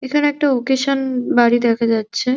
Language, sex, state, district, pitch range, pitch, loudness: Bengali, male, West Bengal, Jhargram, 235-275 Hz, 260 Hz, -17 LUFS